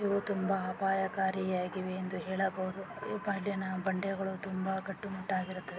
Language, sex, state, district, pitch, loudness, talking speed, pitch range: Kannada, female, Karnataka, Dakshina Kannada, 190 Hz, -35 LUFS, 105 wpm, 185-195 Hz